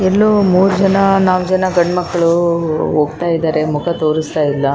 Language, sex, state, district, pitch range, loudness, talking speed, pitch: Kannada, female, Karnataka, Raichur, 155-185 Hz, -14 LUFS, 140 wpm, 170 Hz